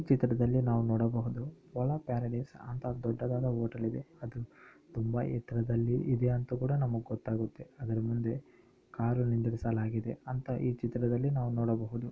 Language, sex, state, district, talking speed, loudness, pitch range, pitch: Kannada, male, Karnataka, Bellary, 125 wpm, -33 LUFS, 115-125 Hz, 120 Hz